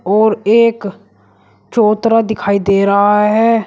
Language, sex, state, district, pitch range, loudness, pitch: Hindi, male, Uttar Pradesh, Shamli, 195-220 Hz, -12 LUFS, 210 Hz